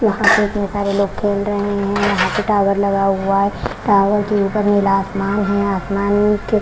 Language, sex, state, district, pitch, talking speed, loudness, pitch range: Hindi, female, Haryana, Rohtak, 200 Hz, 210 wpm, -17 LUFS, 200-205 Hz